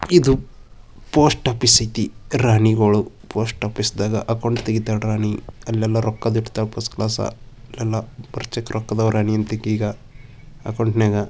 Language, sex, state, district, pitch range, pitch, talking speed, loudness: Kannada, male, Karnataka, Bijapur, 110-120 Hz, 110 Hz, 90 wpm, -20 LUFS